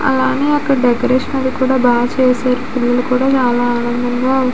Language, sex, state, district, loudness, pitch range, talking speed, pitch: Telugu, female, Andhra Pradesh, Visakhapatnam, -15 LUFS, 245-265 Hz, 160 wpm, 255 Hz